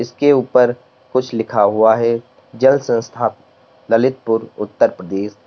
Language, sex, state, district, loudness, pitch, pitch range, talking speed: Hindi, male, Uttar Pradesh, Lalitpur, -16 LUFS, 120 Hz, 110-130 Hz, 120 wpm